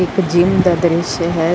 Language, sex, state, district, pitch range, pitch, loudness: Punjabi, female, Karnataka, Bangalore, 170-180 Hz, 175 Hz, -15 LUFS